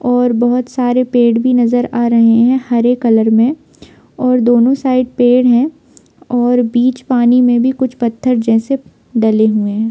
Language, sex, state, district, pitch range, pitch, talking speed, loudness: Hindi, female, Jharkhand, Sahebganj, 235-255 Hz, 245 Hz, 165 wpm, -12 LUFS